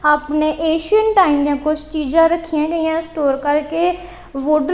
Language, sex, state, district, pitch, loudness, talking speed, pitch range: Punjabi, female, Punjab, Kapurthala, 310 Hz, -17 LUFS, 140 wpm, 300-335 Hz